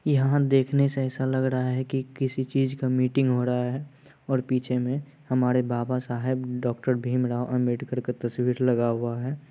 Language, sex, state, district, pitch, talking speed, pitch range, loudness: Hindi, male, Bihar, Purnia, 130 Hz, 185 wpm, 125-135 Hz, -26 LUFS